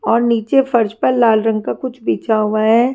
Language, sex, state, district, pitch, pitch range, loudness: Hindi, female, Himachal Pradesh, Shimla, 230 Hz, 220-245 Hz, -15 LUFS